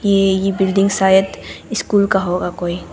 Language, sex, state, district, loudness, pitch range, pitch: Hindi, female, Arunachal Pradesh, Papum Pare, -16 LUFS, 185-195 Hz, 195 Hz